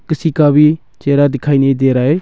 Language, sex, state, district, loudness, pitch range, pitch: Hindi, male, Arunachal Pradesh, Longding, -12 LUFS, 135-155 Hz, 145 Hz